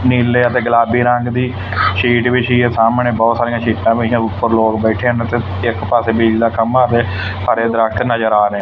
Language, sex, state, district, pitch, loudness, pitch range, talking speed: Punjabi, male, Punjab, Fazilka, 115 Hz, -14 LUFS, 110-120 Hz, 200 wpm